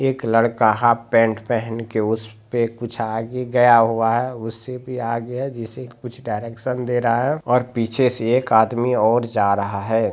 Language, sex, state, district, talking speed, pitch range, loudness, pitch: Hindi, male, Bihar, Begusarai, 195 wpm, 115-125 Hz, -20 LUFS, 115 Hz